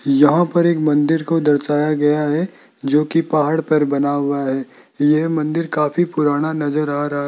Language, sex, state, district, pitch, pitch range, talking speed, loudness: Hindi, male, Rajasthan, Jaipur, 150 Hz, 145-160 Hz, 190 wpm, -17 LUFS